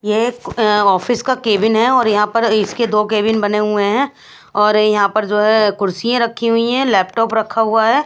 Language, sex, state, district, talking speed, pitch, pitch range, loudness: Hindi, female, Bihar, West Champaran, 210 wpm, 220 Hz, 210-230 Hz, -15 LUFS